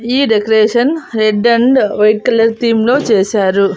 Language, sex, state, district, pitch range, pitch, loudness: Telugu, female, Andhra Pradesh, Annamaya, 215-240 Hz, 225 Hz, -12 LUFS